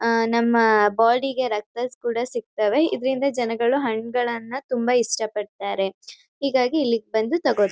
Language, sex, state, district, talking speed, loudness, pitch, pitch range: Kannada, female, Karnataka, Chamarajanagar, 125 wpm, -22 LUFS, 235 Hz, 220-255 Hz